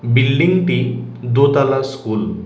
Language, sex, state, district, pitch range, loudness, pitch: Bengali, male, Tripura, West Tripura, 120-140 Hz, -16 LUFS, 135 Hz